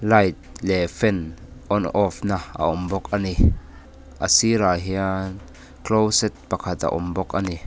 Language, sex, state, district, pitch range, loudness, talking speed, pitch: Mizo, male, Mizoram, Aizawl, 85-100 Hz, -22 LUFS, 165 wpm, 95 Hz